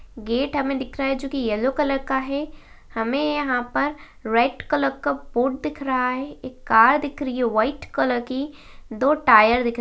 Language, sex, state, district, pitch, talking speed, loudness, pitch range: Hindi, female, Uttarakhand, Tehri Garhwal, 265 Hz, 195 wpm, -22 LUFS, 245-280 Hz